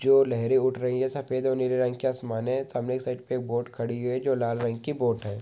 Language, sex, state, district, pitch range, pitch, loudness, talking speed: Hindi, male, Andhra Pradesh, Krishna, 120-130 Hz, 125 Hz, -27 LUFS, 290 wpm